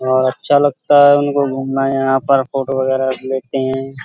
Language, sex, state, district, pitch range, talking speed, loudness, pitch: Hindi, male, Uttar Pradesh, Hamirpur, 130-140 Hz, 180 wpm, -15 LUFS, 135 Hz